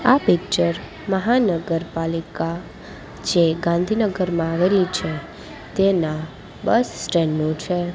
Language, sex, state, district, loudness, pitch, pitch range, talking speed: Gujarati, female, Gujarat, Gandhinagar, -21 LUFS, 170 Hz, 165-190 Hz, 90 wpm